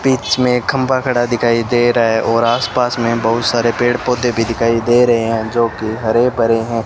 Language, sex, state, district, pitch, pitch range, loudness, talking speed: Hindi, male, Rajasthan, Bikaner, 120 Hz, 115-125 Hz, -15 LUFS, 220 wpm